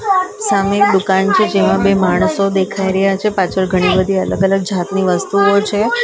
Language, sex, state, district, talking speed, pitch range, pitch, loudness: Gujarati, female, Maharashtra, Mumbai Suburban, 190 wpm, 190-200 Hz, 195 Hz, -14 LUFS